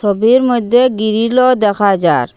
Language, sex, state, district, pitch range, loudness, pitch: Bengali, female, Assam, Hailakandi, 205-250 Hz, -12 LUFS, 220 Hz